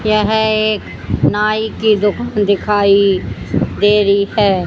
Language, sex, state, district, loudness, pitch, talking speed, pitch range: Hindi, female, Haryana, Charkhi Dadri, -14 LUFS, 205 Hz, 115 wpm, 200-215 Hz